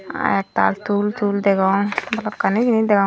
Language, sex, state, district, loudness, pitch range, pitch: Chakma, female, Tripura, Dhalai, -19 LUFS, 200-215 Hz, 205 Hz